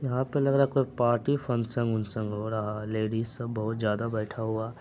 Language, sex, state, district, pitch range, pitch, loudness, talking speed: Hindi, male, Bihar, Araria, 110-125 Hz, 115 Hz, -29 LUFS, 225 wpm